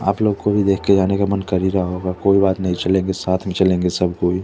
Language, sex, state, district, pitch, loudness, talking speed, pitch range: Hindi, male, Chandigarh, Chandigarh, 95 Hz, -18 LUFS, 300 wpm, 90-100 Hz